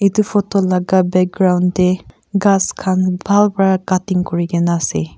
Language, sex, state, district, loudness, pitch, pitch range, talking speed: Nagamese, female, Nagaland, Kohima, -16 LUFS, 185 Hz, 180-195 Hz, 150 wpm